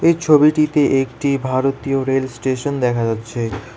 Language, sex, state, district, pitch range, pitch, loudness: Bengali, male, West Bengal, Alipurduar, 120-145 Hz, 135 Hz, -17 LUFS